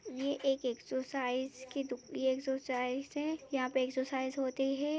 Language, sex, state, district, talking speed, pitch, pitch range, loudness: Hindi, female, Chhattisgarh, Jashpur, 155 wpm, 265 Hz, 260-275 Hz, -36 LUFS